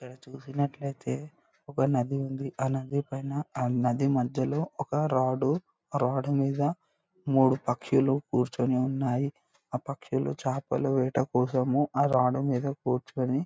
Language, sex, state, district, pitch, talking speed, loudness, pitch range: Telugu, male, Andhra Pradesh, Anantapur, 135 Hz, 115 wpm, -29 LUFS, 130-140 Hz